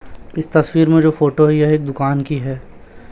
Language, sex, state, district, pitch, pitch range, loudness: Hindi, male, Chhattisgarh, Raipur, 150 Hz, 140-155 Hz, -15 LUFS